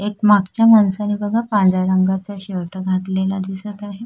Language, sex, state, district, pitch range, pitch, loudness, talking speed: Marathi, female, Maharashtra, Sindhudurg, 190-210 Hz, 200 Hz, -17 LUFS, 135 wpm